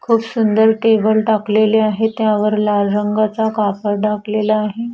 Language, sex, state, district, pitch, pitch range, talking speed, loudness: Marathi, female, Maharashtra, Washim, 215 Hz, 210-220 Hz, 135 wpm, -16 LUFS